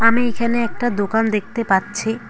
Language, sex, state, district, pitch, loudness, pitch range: Bengali, female, West Bengal, Cooch Behar, 230 Hz, -19 LUFS, 210-235 Hz